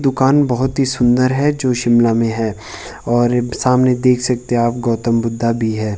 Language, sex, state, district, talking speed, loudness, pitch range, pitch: Hindi, male, Himachal Pradesh, Shimla, 190 wpm, -15 LUFS, 115-130 Hz, 120 Hz